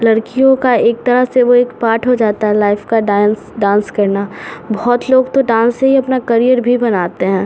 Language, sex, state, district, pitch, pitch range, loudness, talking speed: Hindi, male, Bihar, Samastipur, 230 Hz, 210-250 Hz, -13 LUFS, 215 wpm